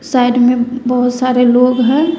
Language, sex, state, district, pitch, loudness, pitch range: Hindi, female, Bihar, West Champaran, 250 Hz, -12 LUFS, 245-255 Hz